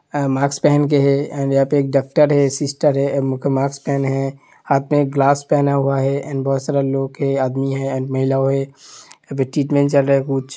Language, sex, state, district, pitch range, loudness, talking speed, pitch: Hindi, male, Uttar Pradesh, Hamirpur, 135-140 Hz, -18 LUFS, 185 wpm, 140 Hz